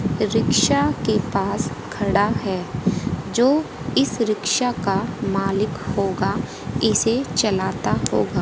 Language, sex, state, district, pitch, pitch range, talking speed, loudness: Hindi, female, Haryana, Jhajjar, 205 Hz, 195-225 Hz, 100 wpm, -21 LUFS